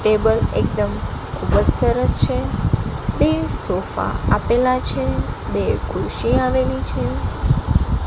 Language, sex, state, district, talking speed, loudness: Gujarati, female, Gujarat, Gandhinagar, 95 wpm, -20 LUFS